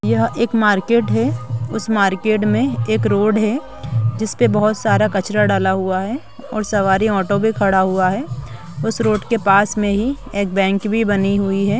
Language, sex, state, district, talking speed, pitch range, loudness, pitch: Hindi, female, Bihar, Samastipur, 185 wpm, 170-215 Hz, -17 LUFS, 200 Hz